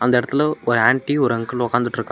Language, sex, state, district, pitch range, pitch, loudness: Tamil, male, Tamil Nadu, Namakkal, 120-130 Hz, 120 Hz, -19 LUFS